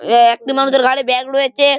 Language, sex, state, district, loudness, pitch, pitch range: Bengali, male, West Bengal, Malda, -14 LUFS, 270 Hz, 250-275 Hz